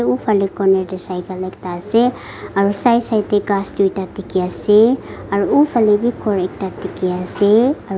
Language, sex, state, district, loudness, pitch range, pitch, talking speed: Nagamese, female, Nagaland, Kohima, -17 LUFS, 185-215 Hz, 200 Hz, 160 wpm